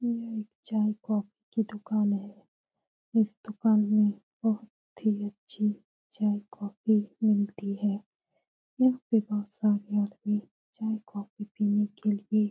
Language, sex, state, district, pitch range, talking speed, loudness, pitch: Hindi, female, Bihar, Supaul, 205-220 Hz, 120 wpm, -29 LUFS, 210 Hz